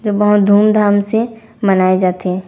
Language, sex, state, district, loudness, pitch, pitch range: Chhattisgarhi, female, Chhattisgarh, Raigarh, -13 LUFS, 205 Hz, 190-215 Hz